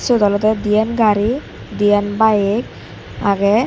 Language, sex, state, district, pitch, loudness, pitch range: Chakma, female, Tripura, Dhalai, 210 Hz, -16 LUFS, 205-220 Hz